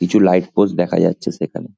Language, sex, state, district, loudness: Bengali, male, West Bengal, Kolkata, -17 LUFS